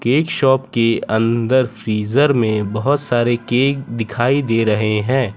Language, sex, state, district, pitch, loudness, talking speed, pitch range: Hindi, male, Gujarat, Valsad, 120 Hz, -17 LUFS, 145 wpm, 110-135 Hz